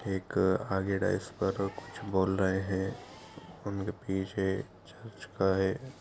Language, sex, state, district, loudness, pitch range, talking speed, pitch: Hindi, male, Bihar, Gaya, -32 LUFS, 95-100 Hz, 130 wpm, 95 Hz